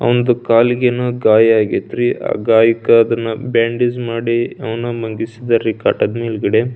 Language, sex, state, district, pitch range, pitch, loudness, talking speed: Kannada, male, Karnataka, Belgaum, 115-120 Hz, 115 Hz, -15 LUFS, 105 wpm